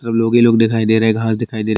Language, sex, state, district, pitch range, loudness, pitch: Hindi, male, Bihar, Bhagalpur, 110-115 Hz, -14 LUFS, 115 Hz